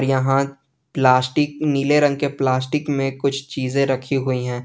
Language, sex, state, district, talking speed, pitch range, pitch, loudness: Hindi, male, Jharkhand, Garhwa, 155 wpm, 130-140 Hz, 135 Hz, -20 LUFS